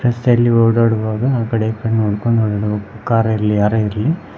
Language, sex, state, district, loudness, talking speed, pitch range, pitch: Kannada, male, Karnataka, Koppal, -16 LUFS, 165 wpm, 105-120 Hz, 115 Hz